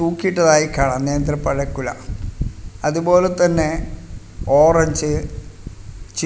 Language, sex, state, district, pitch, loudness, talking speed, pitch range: Malayalam, male, Kerala, Kasaragod, 140 Hz, -18 LUFS, 50 wpm, 105-160 Hz